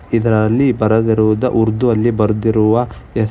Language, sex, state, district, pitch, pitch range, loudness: Kannada, male, Karnataka, Bangalore, 110 Hz, 110-115 Hz, -15 LUFS